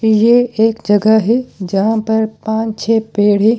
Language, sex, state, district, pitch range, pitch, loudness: Hindi, male, Delhi, New Delhi, 215-225 Hz, 220 Hz, -14 LUFS